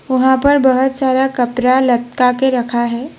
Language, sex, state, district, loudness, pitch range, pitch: Hindi, female, Assam, Sonitpur, -14 LUFS, 245-265 Hz, 255 Hz